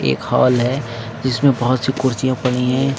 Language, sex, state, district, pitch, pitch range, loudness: Hindi, female, Uttar Pradesh, Lucknow, 130 Hz, 120-130 Hz, -18 LUFS